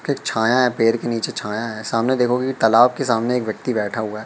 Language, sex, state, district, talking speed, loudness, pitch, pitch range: Hindi, male, Madhya Pradesh, Katni, 270 wpm, -19 LUFS, 115 Hz, 110-125 Hz